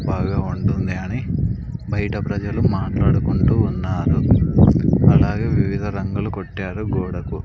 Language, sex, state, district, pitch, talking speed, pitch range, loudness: Telugu, male, Andhra Pradesh, Sri Satya Sai, 100 Hz, 95 wpm, 95-105 Hz, -19 LUFS